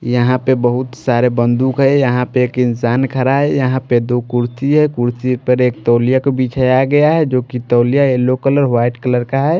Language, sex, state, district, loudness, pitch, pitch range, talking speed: Hindi, male, Maharashtra, Washim, -14 LUFS, 125 Hz, 120-135 Hz, 210 wpm